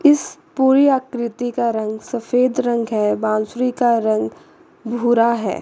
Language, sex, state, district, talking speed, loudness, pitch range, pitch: Hindi, female, Chandigarh, Chandigarh, 140 wpm, -18 LUFS, 220-250 Hz, 240 Hz